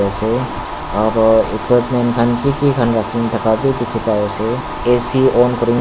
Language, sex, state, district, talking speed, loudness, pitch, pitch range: Nagamese, male, Nagaland, Dimapur, 155 wpm, -15 LUFS, 115 Hz, 110-125 Hz